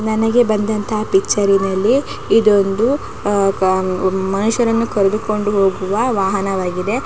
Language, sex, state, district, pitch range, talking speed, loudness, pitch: Kannada, female, Karnataka, Mysore, 195-220 Hz, 110 wpm, -16 LUFS, 205 Hz